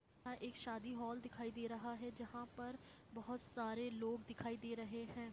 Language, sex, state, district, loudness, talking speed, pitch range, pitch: Hindi, female, Jharkhand, Sahebganj, -48 LUFS, 180 wpm, 230-245 Hz, 235 Hz